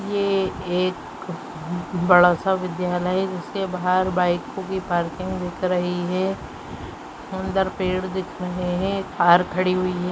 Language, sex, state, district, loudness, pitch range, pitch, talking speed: Bhojpuri, female, Uttar Pradesh, Gorakhpur, -23 LUFS, 180-190 Hz, 185 Hz, 135 wpm